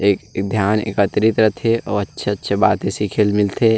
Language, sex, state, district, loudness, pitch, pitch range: Chhattisgarhi, male, Chhattisgarh, Rajnandgaon, -18 LUFS, 105 Hz, 100-110 Hz